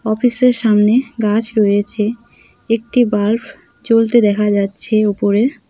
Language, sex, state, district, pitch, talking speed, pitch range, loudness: Bengali, female, West Bengal, Cooch Behar, 220 Hz, 115 wpm, 210-235 Hz, -15 LUFS